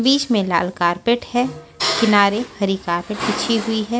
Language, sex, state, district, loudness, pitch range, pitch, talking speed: Hindi, female, Maharashtra, Washim, -19 LUFS, 195-235 Hz, 215 Hz, 165 wpm